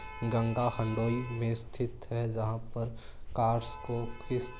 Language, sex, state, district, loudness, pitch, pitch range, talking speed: Hindi, male, Rajasthan, Churu, -34 LUFS, 115 Hz, 115-120 Hz, 145 wpm